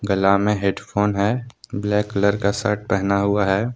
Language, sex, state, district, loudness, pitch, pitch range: Hindi, male, Jharkhand, Deoghar, -20 LUFS, 100 Hz, 100-105 Hz